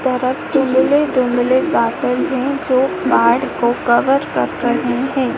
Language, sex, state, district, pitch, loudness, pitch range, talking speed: Hindi, female, Madhya Pradesh, Dhar, 260 Hz, -16 LUFS, 250-275 Hz, 125 wpm